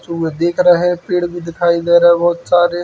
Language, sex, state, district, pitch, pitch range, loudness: Hindi, male, Uttar Pradesh, Hamirpur, 175 Hz, 170-175 Hz, -14 LUFS